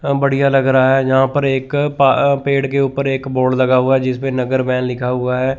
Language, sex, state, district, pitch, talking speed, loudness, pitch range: Hindi, male, Chandigarh, Chandigarh, 135 Hz, 260 wpm, -15 LUFS, 130-140 Hz